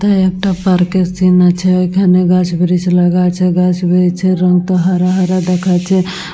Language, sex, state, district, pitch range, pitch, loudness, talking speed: Bengali, female, West Bengal, Purulia, 180-185 Hz, 180 Hz, -12 LUFS, 180 wpm